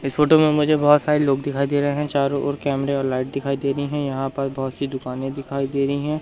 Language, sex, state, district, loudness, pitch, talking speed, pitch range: Hindi, male, Madhya Pradesh, Umaria, -21 LUFS, 140 Hz, 280 wpm, 135-145 Hz